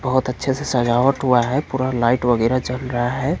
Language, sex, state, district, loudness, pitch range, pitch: Hindi, male, Bihar, Kaimur, -19 LUFS, 120-135 Hz, 130 Hz